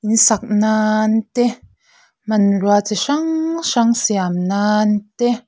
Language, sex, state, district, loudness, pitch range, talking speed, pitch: Mizo, female, Mizoram, Aizawl, -16 LUFS, 210-240 Hz, 120 wpm, 220 Hz